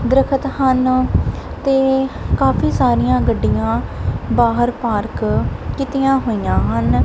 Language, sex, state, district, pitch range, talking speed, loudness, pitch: Punjabi, male, Punjab, Kapurthala, 240-270 Hz, 95 wpm, -17 LUFS, 265 Hz